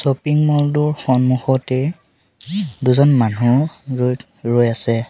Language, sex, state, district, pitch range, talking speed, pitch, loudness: Assamese, male, Assam, Sonitpur, 125-150 Hz, 120 wpm, 130 Hz, -17 LUFS